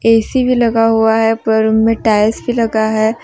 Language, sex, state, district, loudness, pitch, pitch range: Hindi, female, Jharkhand, Deoghar, -13 LUFS, 225 Hz, 220-230 Hz